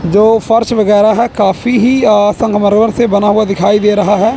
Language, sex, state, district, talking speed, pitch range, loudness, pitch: Hindi, male, Chandigarh, Chandigarh, 205 wpm, 205-230 Hz, -10 LUFS, 210 Hz